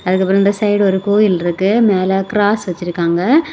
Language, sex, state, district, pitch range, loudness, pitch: Tamil, female, Tamil Nadu, Kanyakumari, 185-210 Hz, -14 LUFS, 195 Hz